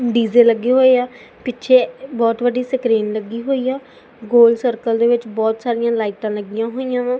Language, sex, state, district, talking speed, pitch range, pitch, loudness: Punjabi, female, Punjab, Kapurthala, 175 wpm, 230-250 Hz, 240 Hz, -17 LUFS